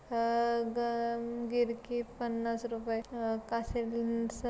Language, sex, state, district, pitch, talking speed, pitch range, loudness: Marathi, female, Maharashtra, Pune, 235 Hz, 65 wpm, 230-235 Hz, -34 LUFS